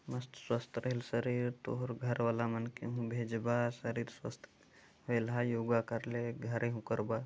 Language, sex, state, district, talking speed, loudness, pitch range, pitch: Chhattisgarhi, male, Chhattisgarh, Jashpur, 175 wpm, -37 LUFS, 115-120 Hz, 120 Hz